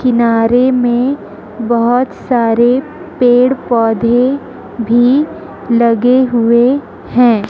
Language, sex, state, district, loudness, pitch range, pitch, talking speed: Hindi, female, Chhattisgarh, Raipur, -12 LUFS, 235-255 Hz, 245 Hz, 80 wpm